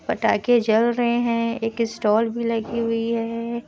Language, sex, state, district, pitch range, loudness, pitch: Hindi, female, Bihar, Kishanganj, 225-235 Hz, -22 LUFS, 230 Hz